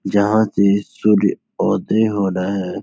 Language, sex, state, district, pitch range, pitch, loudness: Hindi, male, Uttar Pradesh, Etah, 95-105 Hz, 100 Hz, -17 LUFS